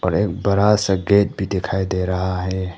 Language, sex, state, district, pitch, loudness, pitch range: Hindi, male, Arunachal Pradesh, Papum Pare, 95 Hz, -19 LUFS, 90-100 Hz